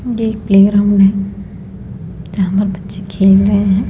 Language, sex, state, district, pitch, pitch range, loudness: Hindi, female, Madhya Pradesh, Bhopal, 195 Hz, 190-205 Hz, -12 LUFS